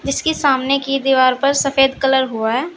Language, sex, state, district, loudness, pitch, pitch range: Hindi, female, Uttar Pradesh, Saharanpur, -16 LUFS, 270 Hz, 260-275 Hz